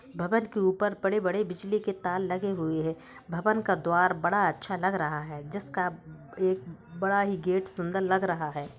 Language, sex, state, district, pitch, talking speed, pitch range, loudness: Hindi, female, Bihar, Gaya, 185 Hz, 185 wpm, 170-200 Hz, -29 LUFS